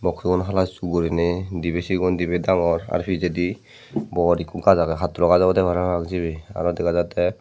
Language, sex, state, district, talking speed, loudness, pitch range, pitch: Chakma, male, Tripura, Dhalai, 180 wpm, -21 LUFS, 85-90 Hz, 90 Hz